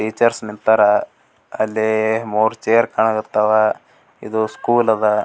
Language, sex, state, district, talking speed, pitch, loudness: Kannada, male, Karnataka, Gulbarga, 115 wpm, 110 Hz, -17 LUFS